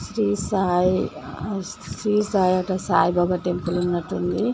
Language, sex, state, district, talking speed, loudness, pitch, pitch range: Telugu, female, Telangana, Nalgonda, 130 wpm, -23 LUFS, 185 Hz, 175-195 Hz